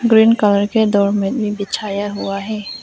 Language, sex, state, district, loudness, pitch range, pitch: Hindi, female, Arunachal Pradesh, Lower Dibang Valley, -16 LUFS, 200-220 Hz, 205 Hz